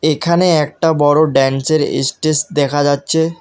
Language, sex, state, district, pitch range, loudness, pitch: Bengali, male, West Bengal, Alipurduar, 145-160 Hz, -14 LUFS, 155 Hz